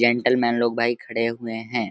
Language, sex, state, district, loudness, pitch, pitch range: Hindi, male, Uttar Pradesh, Deoria, -23 LUFS, 120 Hz, 115-120 Hz